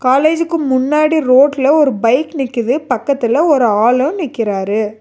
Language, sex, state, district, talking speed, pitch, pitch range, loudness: Tamil, female, Tamil Nadu, Nilgiris, 120 wpm, 265 Hz, 235-300 Hz, -13 LUFS